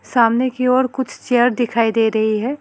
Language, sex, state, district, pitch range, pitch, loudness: Hindi, female, West Bengal, Alipurduar, 225-255 Hz, 240 Hz, -17 LUFS